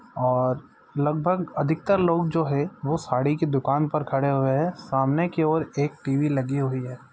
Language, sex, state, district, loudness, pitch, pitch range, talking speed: Maithili, male, Bihar, Supaul, -24 LUFS, 145 Hz, 135-160 Hz, 185 wpm